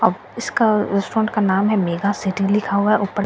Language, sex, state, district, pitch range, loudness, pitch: Hindi, female, Bihar, Katihar, 195-215 Hz, -19 LUFS, 205 Hz